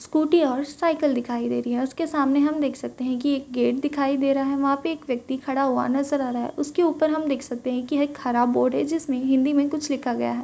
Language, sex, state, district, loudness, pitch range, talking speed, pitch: Hindi, female, Uttar Pradesh, Varanasi, -24 LUFS, 255-295 Hz, 280 wpm, 275 Hz